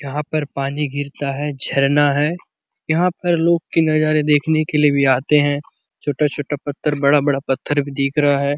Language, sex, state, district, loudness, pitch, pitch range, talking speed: Hindi, male, Chhattisgarh, Bastar, -18 LUFS, 145 Hz, 140-155 Hz, 175 wpm